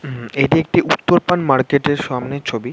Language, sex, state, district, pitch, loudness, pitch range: Bengali, male, West Bengal, North 24 Parganas, 140 Hz, -17 LUFS, 130-165 Hz